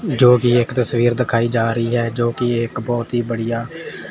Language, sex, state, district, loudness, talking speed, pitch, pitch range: Hindi, male, Punjab, Fazilka, -18 LUFS, 175 wpm, 120 Hz, 115-120 Hz